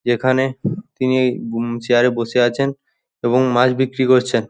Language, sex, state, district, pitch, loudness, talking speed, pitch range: Bengali, male, West Bengal, Jhargram, 125 Hz, -18 LUFS, 145 wpm, 120-130 Hz